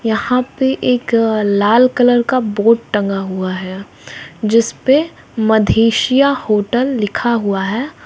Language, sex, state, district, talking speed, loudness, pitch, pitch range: Hindi, female, Bihar, West Champaran, 120 wpm, -15 LUFS, 230 Hz, 205-250 Hz